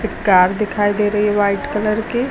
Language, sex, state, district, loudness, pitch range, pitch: Hindi, female, Uttar Pradesh, Lucknow, -17 LUFS, 205-215 Hz, 210 Hz